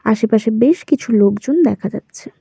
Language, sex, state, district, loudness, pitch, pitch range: Bengali, female, West Bengal, Cooch Behar, -15 LUFS, 225 Hz, 215-285 Hz